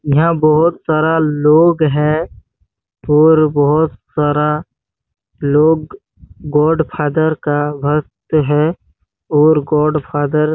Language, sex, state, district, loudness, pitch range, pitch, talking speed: Hindi, male, Chhattisgarh, Bastar, -14 LUFS, 145-155 Hz, 150 Hz, 90 wpm